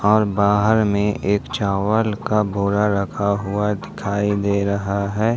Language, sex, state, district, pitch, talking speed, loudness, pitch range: Hindi, male, Jharkhand, Ranchi, 100 Hz, 145 wpm, -20 LUFS, 100-105 Hz